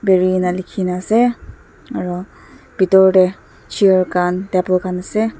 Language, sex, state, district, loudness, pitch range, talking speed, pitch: Nagamese, female, Nagaland, Dimapur, -16 LUFS, 180-195 Hz, 145 wpm, 185 Hz